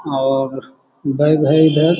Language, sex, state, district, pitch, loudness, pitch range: Hindi, male, Bihar, Gaya, 145 Hz, -15 LUFS, 135-155 Hz